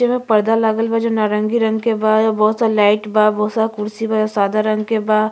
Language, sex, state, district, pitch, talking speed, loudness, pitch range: Bhojpuri, female, Uttar Pradesh, Ghazipur, 215 Hz, 235 wpm, -16 LUFS, 215-225 Hz